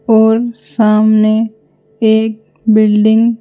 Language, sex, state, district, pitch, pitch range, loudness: Hindi, female, Madhya Pradesh, Bhopal, 220 Hz, 215-225 Hz, -12 LUFS